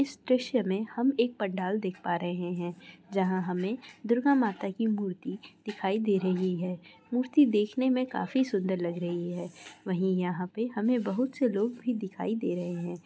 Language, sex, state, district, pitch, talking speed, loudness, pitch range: Hindi, female, Bihar, Purnia, 200 Hz, 180 wpm, -30 LUFS, 180-240 Hz